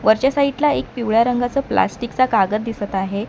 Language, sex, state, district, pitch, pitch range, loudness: Marathi, male, Maharashtra, Mumbai Suburban, 235 Hz, 215-260 Hz, -19 LUFS